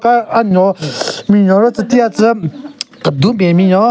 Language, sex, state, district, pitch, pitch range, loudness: Rengma, male, Nagaland, Kohima, 215 Hz, 190-235 Hz, -12 LUFS